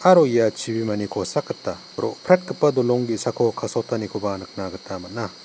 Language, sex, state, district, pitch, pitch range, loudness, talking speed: Garo, male, Meghalaya, West Garo Hills, 115 Hz, 100-125 Hz, -23 LUFS, 130 wpm